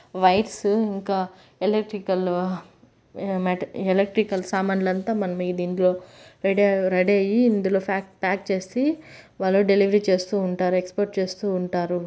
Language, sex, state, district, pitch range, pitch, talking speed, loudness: Telugu, female, Andhra Pradesh, Chittoor, 185-200 Hz, 190 Hz, 100 wpm, -23 LUFS